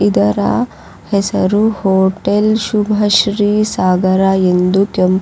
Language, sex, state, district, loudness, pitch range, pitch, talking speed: Kannada, female, Karnataka, Raichur, -13 LUFS, 185-210 Hz, 195 Hz, 70 wpm